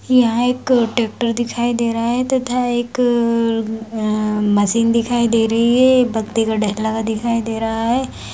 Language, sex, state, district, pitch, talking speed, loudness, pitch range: Hindi, female, Bihar, Madhepura, 230 Hz, 175 wpm, -17 LUFS, 225-240 Hz